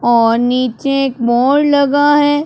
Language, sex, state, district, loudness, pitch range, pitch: Hindi, male, Punjab, Pathankot, -13 LUFS, 240-290 Hz, 275 Hz